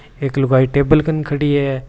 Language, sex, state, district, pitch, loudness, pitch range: Marwari, male, Rajasthan, Churu, 140 Hz, -16 LUFS, 135-150 Hz